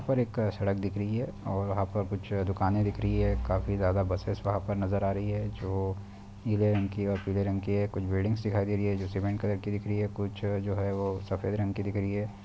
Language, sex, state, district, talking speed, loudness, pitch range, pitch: Hindi, male, Bihar, Vaishali, 265 wpm, -31 LUFS, 100-105 Hz, 100 Hz